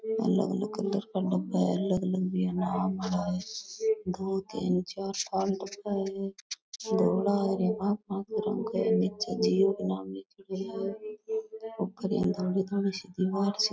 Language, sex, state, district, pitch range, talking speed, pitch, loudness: Rajasthani, female, Rajasthan, Nagaur, 190-205 Hz, 60 wpm, 195 Hz, -30 LUFS